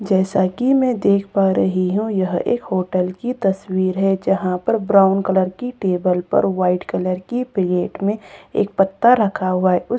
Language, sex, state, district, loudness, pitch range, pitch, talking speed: Hindi, female, Bihar, Katihar, -18 LUFS, 185-210 Hz, 195 Hz, 190 wpm